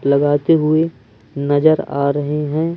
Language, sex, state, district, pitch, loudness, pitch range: Hindi, male, Madhya Pradesh, Umaria, 145 Hz, -16 LUFS, 140-155 Hz